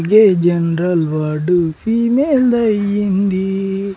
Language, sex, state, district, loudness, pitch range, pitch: Telugu, male, Andhra Pradesh, Sri Satya Sai, -15 LUFS, 175-215 Hz, 195 Hz